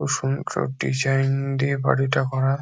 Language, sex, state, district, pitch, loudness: Bengali, male, West Bengal, North 24 Parganas, 135 Hz, -23 LUFS